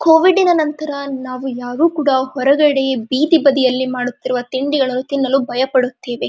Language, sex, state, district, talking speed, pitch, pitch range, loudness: Kannada, female, Karnataka, Dharwad, 115 wpm, 265 Hz, 255-295 Hz, -16 LUFS